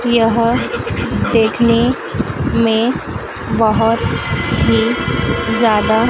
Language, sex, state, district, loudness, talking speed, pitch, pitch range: Hindi, female, Madhya Pradesh, Dhar, -15 LUFS, 60 wpm, 230 Hz, 225-235 Hz